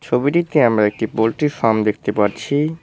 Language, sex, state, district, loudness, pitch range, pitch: Bengali, male, West Bengal, Cooch Behar, -18 LUFS, 110-150 Hz, 115 Hz